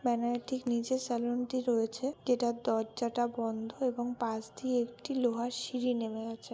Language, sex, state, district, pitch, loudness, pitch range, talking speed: Bengali, female, West Bengal, Malda, 240 Hz, -34 LUFS, 230-250 Hz, 155 wpm